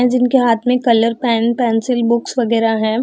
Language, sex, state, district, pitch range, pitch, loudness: Hindi, female, Bihar, Samastipur, 230-250 Hz, 235 Hz, -15 LUFS